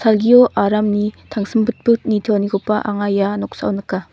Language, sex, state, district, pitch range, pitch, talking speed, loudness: Garo, female, Meghalaya, North Garo Hills, 200-220 Hz, 210 Hz, 115 wpm, -17 LUFS